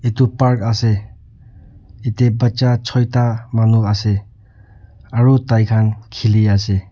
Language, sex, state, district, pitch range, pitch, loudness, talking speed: Nagamese, male, Nagaland, Dimapur, 105-120 Hz, 110 Hz, -16 LUFS, 115 wpm